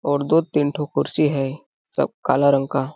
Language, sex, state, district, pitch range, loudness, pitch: Hindi, male, Chhattisgarh, Balrampur, 135-150 Hz, -21 LUFS, 145 Hz